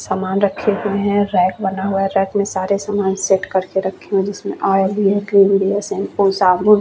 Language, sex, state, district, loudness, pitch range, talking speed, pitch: Hindi, female, Chhattisgarh, Bastar, -17 LUFS, 190-200 Hz, 210 wpm, 195 Hz